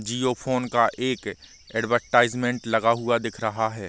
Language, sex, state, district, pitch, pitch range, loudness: Hindi, male, Bihar, Vaishali, 115 Hz, 110-120 Hz, -24 LUFS